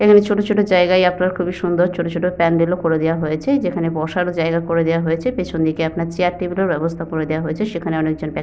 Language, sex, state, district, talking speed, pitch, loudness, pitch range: Bengali, female, West Bengal, Jhargram, 250 wpm, 170 Hz, -18 LUFS, 165-180 Hz